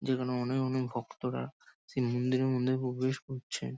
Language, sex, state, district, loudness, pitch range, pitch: Bengali, male, West Bengal, Kolkata, -33 LUFS, 125-130 Hz, 130 Hz